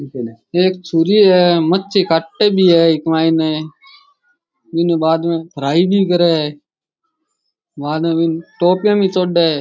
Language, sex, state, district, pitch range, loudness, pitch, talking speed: Rajasthani, male, Rajasthan, Churu, 160-195 Hz, -14 LUFS, 170 Hz, 125 wpm